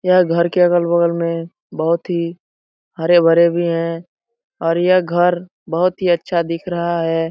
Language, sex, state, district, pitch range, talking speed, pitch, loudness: Hindi, male, Bihar, Supaul, 165-175 Hz, 155 wpm, 170 Hz, -17 LUFS